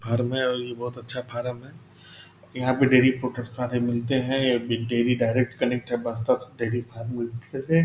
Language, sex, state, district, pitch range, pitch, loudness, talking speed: Hindi, male, Bihar, Purnia, 120-130 Hz, 125 Hz, -25 LUFS, 160 wpm